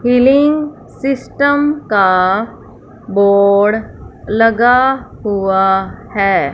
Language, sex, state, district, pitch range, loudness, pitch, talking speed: Hindi, female, Punjab, Fazilka, 200-265 Hz, -13 LUFS, 220 Hz, 65 wpm